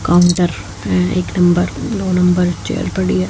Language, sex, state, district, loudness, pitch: Hindi, female, Haryana, Jhajjar, -16 LUFS, 175 Hz